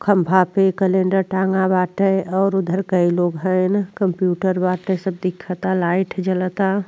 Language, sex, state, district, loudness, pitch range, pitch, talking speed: Bhojpuri, female, Uttar Pradesh, Deoria, -19 LUFS, 185-190 Hz, 190 Hz, 140 wpm